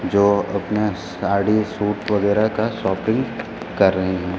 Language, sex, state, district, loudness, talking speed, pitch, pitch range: Hindi, male, Chhattisgarh, Raipur, -20 LUFS, 135 wpm, 100 Hz, 95-105 Hz